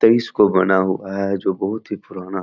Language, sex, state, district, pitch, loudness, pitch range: Hindi, male, Bihar, Jahanabad, 95 Hz, -19 LUFS, 95-100 Hz